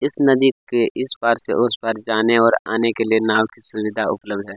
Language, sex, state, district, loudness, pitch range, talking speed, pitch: Hindi, male, Chhattisgarh, Kabirdham, -19 LUFS, 110-115 Hz, 250 wpm, 115 Hz